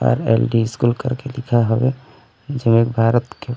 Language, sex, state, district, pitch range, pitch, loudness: Chhattisgarhi, male, Chhattisgarh, Raigarh, 115-130 Hz, 120 Hz, -18 LUFS